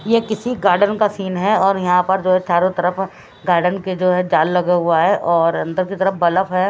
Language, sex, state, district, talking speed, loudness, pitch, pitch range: Hindi, female, Chhattisgarh, Raipur, 240 wpm, -17 LUFS, 185 Hz, 180-195 Hz